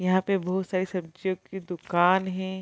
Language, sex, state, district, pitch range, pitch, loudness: Hindi, female, Bihar, Kishanganj, 185-190 Hz, 185 Hz, -27 LUFS